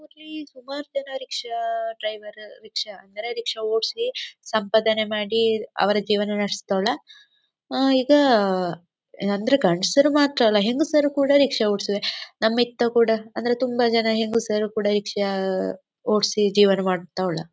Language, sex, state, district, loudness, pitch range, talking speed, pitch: Kannada, female, Karnataka, Dakshina Kannada, -22 LUFS, 205-280 Hz, 115 wpm, 225 Hz